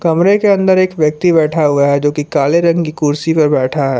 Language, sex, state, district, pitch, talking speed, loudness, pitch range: Hindi, male, Jharkhand, Palamu, 155 Hz, 240 wpm, -12 LUFS, 145-170 Hz